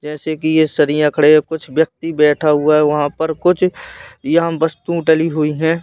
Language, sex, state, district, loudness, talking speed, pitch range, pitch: Hindi, male, Madhya Pradesh, Katni, -15 LUFS, 185 wpm, 150-160 Hz, 155 Hz